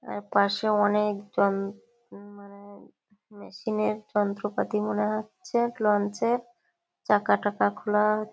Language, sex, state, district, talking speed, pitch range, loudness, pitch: Bengali, female, West Bengal, Kolkata, 95 wpm, 205-220 Hz, -26 LUFS, 210 Hz